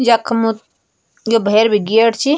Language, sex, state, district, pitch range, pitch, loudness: Garhwali, male, Uttarakhand, Tehri Garhwal, 220-230 Hz, 225 Hz, -14 LUFS